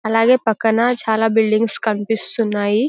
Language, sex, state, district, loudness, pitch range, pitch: Telugu, female, Telangana, Karimnagar, -17 LUFS, 220-225 Hz, 225 Hz